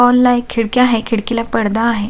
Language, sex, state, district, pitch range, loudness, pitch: Marathi, female, Maharashtra, Sindhudurg, 225-245 Hz, -15 LUFS, 230 Hz